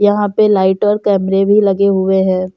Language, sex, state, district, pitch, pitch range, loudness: Hindi, female, Uttar Pradesh, Jyotiba Phule Nagar, 195 Hz, 190-205 Hz, -13 LUFS